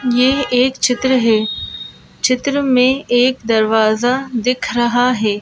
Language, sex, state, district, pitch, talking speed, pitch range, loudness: Hindi, female, Madhya Pradesh, Bhopal, 250 Hz, 120 wpm, 235-260 Hz, -15 LUFS